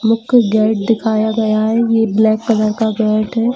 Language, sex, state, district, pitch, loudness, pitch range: Hindi, female, Jharkhand, Jamtara, 220 Hz, -14 LUFS, 215-225 Hz